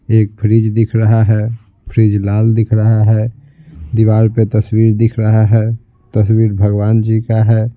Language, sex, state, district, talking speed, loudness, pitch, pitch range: Hindi, male, Bihar, Patna, 160 wpm, -13 LUFS, 110 Hz, 110-115 Hz